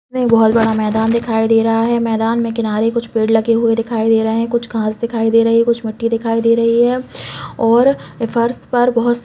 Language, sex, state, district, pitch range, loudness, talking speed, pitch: Hindi, female, Chhattisgarh, Balrampur, 225-235 Hz, -15 LUFS, 225 wpm, 230 Hz